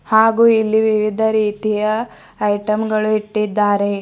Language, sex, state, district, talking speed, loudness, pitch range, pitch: Kannada, female, Karnataka, Bidar, 105 wpm, -16 LUFS, 210-220 Hz, 215 Hz